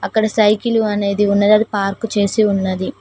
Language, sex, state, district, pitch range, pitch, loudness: Telugu, female, Telangana, Mahabubabad, 200-215 Hz, 210 Hz, -16 LUFS